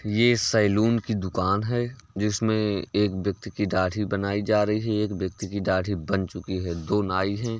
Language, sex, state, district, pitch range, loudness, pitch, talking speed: Hindi, male, Uttar Pradesh, Varanasi, 95-110 Hz, -25 LUFS, 105 Hz, 190 wpm